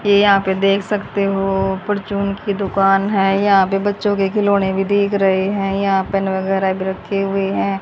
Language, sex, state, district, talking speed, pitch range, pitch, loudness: Hindi, female, Haryana, Rohtak, 200 wpm, 195-200 Hz, 195 Hz, -17 LUFS